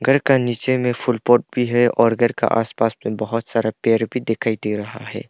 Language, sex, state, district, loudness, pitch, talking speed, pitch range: Hindi, male, Arunachal Pradesh, Papum Pare, -19 LUFS, 115 Hz, 225 wpm, 115-125 Hz